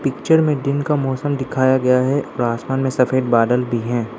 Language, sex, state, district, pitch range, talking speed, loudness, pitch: Hindi, male, Arunachal Pradesh, Lower Dibang Valley, 125-140 Hz, 215 wpm, -18 LUFS, 130 Hz